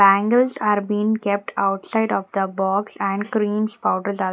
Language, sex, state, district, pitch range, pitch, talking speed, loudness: English, female, Haryana, Jhajjar, 195-215 Hz, 205 Hz, 165 wpm, -21 LUFS